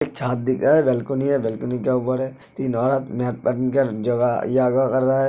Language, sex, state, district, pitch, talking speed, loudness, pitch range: Hindi, male, Uttar Pradesh, Hamirpur, 130 Hz, 180 wpm, -21 LUFS, 125-135 Hz